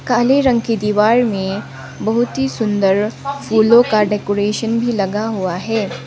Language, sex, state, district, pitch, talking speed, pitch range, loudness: Hindi, female, Sikkim, Gangtok, 220 Hz, 150 wpm, 205-235 Hz, -16 LUFS